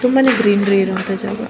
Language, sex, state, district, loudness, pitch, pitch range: Kannada, female, Karnataka, Shimoga, -16 LUFS, 210 Hz, 195-245 Hz